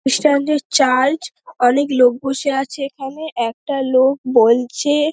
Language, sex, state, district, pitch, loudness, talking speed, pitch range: Bengali, female, West Bengal, Dakshin Dinajpur, 270 Hz, -16 LUFS, 115 wpm, 255-295 Hz